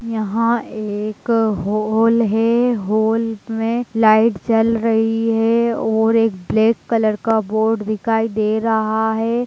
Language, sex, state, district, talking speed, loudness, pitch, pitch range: Hindi, female, Bihar, Begusarai, 125 wpm, -17 LUFS, 225 Hz, 215-230 Hz